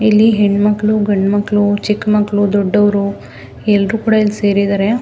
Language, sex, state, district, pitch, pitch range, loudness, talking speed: Kannada, female, Karnataka, Mysore, 205 Hz, 200-210 Hz, -14 LUFS, 120 wpm